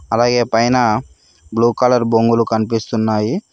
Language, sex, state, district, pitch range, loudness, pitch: Telugu, male, Telangana, Mahabubabad, 110-120 Hz, -16 LUFS, 115 Hz